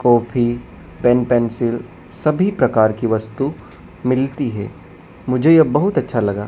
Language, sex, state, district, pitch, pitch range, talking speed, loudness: Hindi, male, Madhya Pradesh, Dhar, 120 Hz, 110-135 Hz, 130 wpm, -17 LUFS